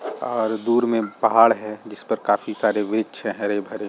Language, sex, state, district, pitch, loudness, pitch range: Hindi, male, Chhattisgarh, Rajnandgaon, 110 Hz, -21 LUFS, 105-115 Hz